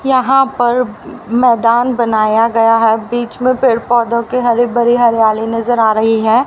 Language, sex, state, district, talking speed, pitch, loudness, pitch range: Hindi, female, Haryana, Rohtak, 165 wpm, 235 Hz, -12 LUFS, 225-245 Hz